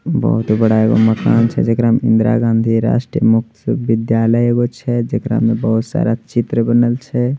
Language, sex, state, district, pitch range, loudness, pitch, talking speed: Angika, male, Bihar, Begusarai, 115-120 Hz, -15 LUFS, 115 Hz, 160 wpm